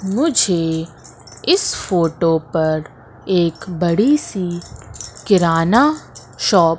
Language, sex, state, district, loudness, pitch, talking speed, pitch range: Hindi, female, Madhya Pradesh, Katni, -17 LUFS, 170 Hz, 90 wpm, 160-195 Hz